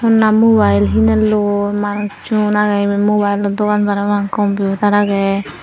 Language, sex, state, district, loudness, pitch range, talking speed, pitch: Chakma, female, Tripura, Unakoti, -14 LUFS, 200-210 Hz, 130 wpm, 205 Hz